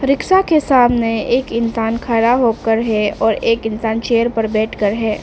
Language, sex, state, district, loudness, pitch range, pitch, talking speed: Hindi, female, Arunachal Pradesh, Papum Pare, -16 LUFS, 220-245 Hz, 230 Hz, 185 wpm